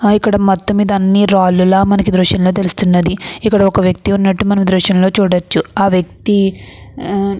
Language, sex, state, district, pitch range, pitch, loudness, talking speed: Telugu, female, Andhra Pradesh, Anantapur, 185-200 Hz, 195 Hz, -12 LUFS, 130 wpm